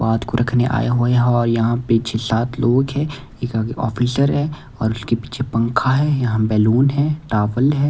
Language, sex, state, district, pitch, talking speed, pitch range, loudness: Hindi, male, Bihar, Patna, 120 Hz, 210 wpm, 115-135 Hz, -18 LUFS